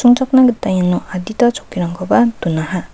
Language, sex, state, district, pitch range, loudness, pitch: Garo, female, Meghalaya, West Garo Hills, 180-245 Hz, -15 LUFS, 195 Hz